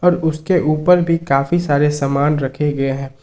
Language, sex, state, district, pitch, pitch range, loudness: Hindi, male, Jharkhand, Ranchi, 150 Hz, 140-170 Hz, -16 LUFS